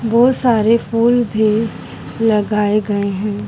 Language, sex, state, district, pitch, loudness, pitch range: Hindi, female, Haryana, Charkhi Dadri, 220 Hz, -15 LUFS, 210-230 Hz